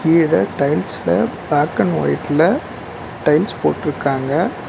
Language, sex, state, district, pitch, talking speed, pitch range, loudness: Tamil, male, Tamil Nadu, Nilgiris, 140 Hz, 90 wpm, 105-165 Hz, -17 LUFS